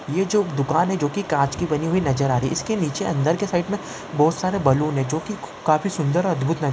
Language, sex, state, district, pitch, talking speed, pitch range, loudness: Hindi, male, Uttar Pradesh, Ghazipur, 160 Hz, 260 wpm, 145-185 Hz, -22 LUFS